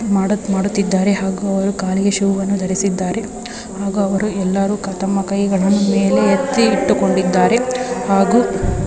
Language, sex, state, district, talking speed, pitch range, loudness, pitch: Kannada, female, Karnataka, Bijapur, 110 wpm, 195-205 Hz, -16 LUFS, 195 Hz